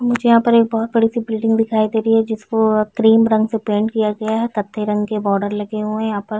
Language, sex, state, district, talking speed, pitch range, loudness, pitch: Hindi, female, Chhattisgarh, Rajnandgaon, 280 wpm, 215-225 Hz, -17 LUFS, 220 Hz